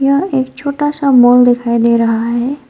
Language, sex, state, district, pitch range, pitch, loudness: Hindi, female, West Bengal, Alipurduar, 235-275 Hz, 255 Hz, -12 LUFS